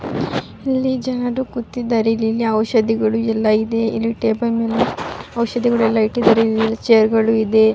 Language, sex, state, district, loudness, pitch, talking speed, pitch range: Kannada, female, Karnataka, Raichur, -18 LUFS, 225 Hz, 125 wpm, 220-240 Hz